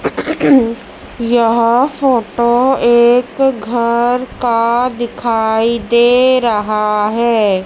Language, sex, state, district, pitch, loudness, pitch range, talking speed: Hindi, female, Madhya Pradesh, Dhar, 235 Hz, -13 LUFS, 230-245 Hz, 70 wpm